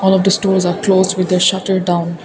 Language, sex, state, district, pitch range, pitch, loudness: English, female, Assam, Kamrup Metropolitan, 180-190 Hz, 190 Hz, -14 LUFS